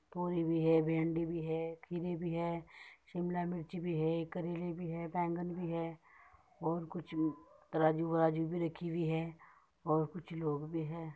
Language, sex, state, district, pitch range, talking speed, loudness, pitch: Hindi, female, Uttar Pradesh, Muzaffarnagar, 160-175 Hz, 170 wpm, -37 LUFS, 165 Hz